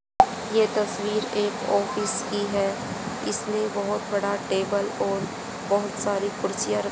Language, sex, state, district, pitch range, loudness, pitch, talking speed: Hindi, female, Haryana, Charkhi Dadri, 200-215 Hz, -26 LUFS, 205 Hz, 130 wpm